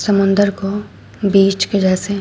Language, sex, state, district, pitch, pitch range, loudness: Hindi, female, Uttar Pradesh, Shamli, 200 Hz, 195-200 Hz, -15 LUFS